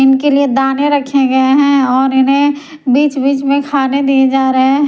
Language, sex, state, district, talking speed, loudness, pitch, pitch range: Hindi, female, Punjab, Pathankot, 185 wpm, -12 LUFS, 275 Hz, 265-285 Hz